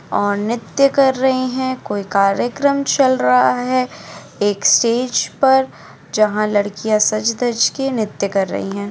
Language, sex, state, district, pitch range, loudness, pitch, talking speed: Hindi, female, Andhra Pradesh, Anantapur, 205-260 Hz, -17 LUFS, 230 Hz, 140 wpm